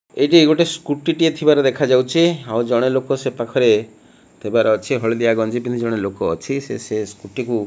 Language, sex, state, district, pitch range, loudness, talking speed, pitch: Odia, male, Odisha, Malkangiri, 115-150 Hz, -18 LUFS, 180 wpm, 130 Hz